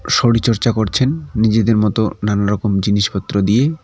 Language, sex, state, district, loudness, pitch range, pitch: Bengali, male, West Bengal, Cooch Behar, -16 LUFS, 100-120 Hz, 110 Hz